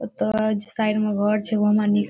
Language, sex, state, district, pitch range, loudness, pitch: Maithili, female, Bihar, Saharsa, 210-215 Hz, -22 LUFS, 210 Hz